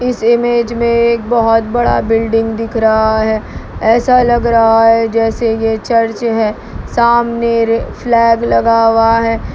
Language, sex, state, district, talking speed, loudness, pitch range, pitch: Hindi, male, Bihar, Kishanganj, 145 wpm, -12 LUFS, 225-235 Hz, 230 Hz